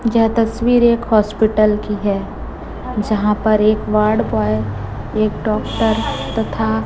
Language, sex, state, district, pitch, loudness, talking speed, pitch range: Hindi, female, Chhattisgarh, Raipur, 215 Hz, -17 LUFS, 120 wpm, 195-225 Hz